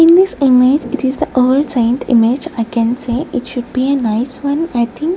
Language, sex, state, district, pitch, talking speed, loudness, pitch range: English, female, Chandigarh, Chandigarh, 260 Hz, 245 wpm, -14 LUFS, 240-285 Hz